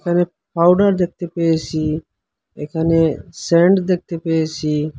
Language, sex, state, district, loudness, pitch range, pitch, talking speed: Bengali, male, Assam, Hailakandi, -18 LUFS, 160-175 Hz, 170 Hz, 95 wpm